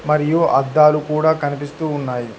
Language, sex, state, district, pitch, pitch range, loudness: Telugu, male, Telangana, Hyderabad, 150 Hz, 145-155 Hz, -17 LUFS